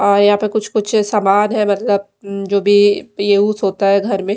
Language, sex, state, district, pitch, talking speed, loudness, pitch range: Hindi, female, Odisha, Malkangiri, 200 Hz, 220 wpm, -15 LUFS, 200-210 Hz